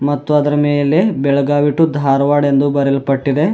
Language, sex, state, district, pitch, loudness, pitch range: Kannada, male, Karnataka, Bidar, 145 Hz, -14 LUFS, 140-145 Hz